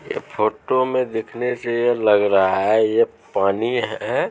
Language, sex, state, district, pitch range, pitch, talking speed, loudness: Maithili, male, Bihar, Supaul, 105-120 Hz, 110 Hz, 165 wpm, -20 LUFS